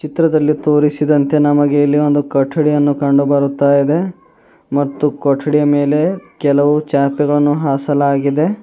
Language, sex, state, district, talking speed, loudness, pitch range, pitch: Kannada, male, Karnataka, Bidar, 105 wpm, -14 LUFS, 140-150 Hz, 145 Hz